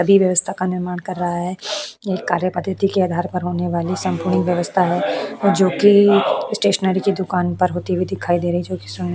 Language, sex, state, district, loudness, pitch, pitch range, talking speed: Hindi, female, Uttar Pradesh, Hamirpur, -19 LUFS, 180 Hz, 175-190 Hz, 205 wpm